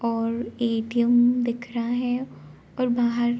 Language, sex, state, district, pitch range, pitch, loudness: Hindi, female, Uttar Pradesh, Varanasi, 235-240 Hz, 240 Hz, -24 LUFS